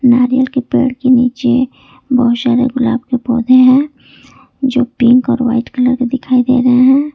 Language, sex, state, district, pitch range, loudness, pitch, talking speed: Hindi, female, Jharkhand, Ranchi, 245-260 Hz, -12 LUFS, 255 Hz, 175 wpm